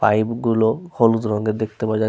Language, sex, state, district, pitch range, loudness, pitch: Bengali, male, Jharkhand, Sahebganj, 110-115 Hz, -20 LUFS, 110 Hz